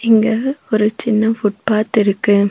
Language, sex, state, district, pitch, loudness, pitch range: Tamil, female, Tamil Nadu, Nilgiris, 215 Hz, -16 LUFS, 210-225 Hz